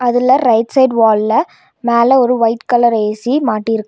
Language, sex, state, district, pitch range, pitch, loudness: Tamil, female, Tamil Nadu, Nilgiris, 225-255 Hz, 235 Hz, -13 LUFS